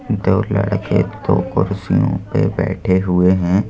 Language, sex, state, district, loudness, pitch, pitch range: Hindi, male, Madhya Pradesh, Bhopal, -17 LUFS, 95 Hz, 90-100 Hz